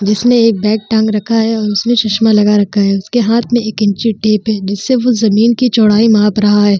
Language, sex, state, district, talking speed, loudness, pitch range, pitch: Hindi, female, Bihar, Vaishali, 240 wpm, -11 LUFS, 210-230 Hz, 215 Hz